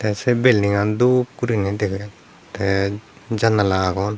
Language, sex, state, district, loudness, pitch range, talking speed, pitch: Chakma, male, Tripura, Dhalai, -19 LUFS, 100-115 Hz, 130 wpm, 105 Hz